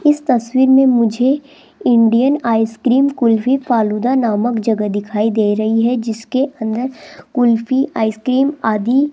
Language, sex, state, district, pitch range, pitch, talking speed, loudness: Hindi, female, Rajasthan, Jaipur, 225-265 Hz, 240 Hz, 130 wpm, -15 LUFS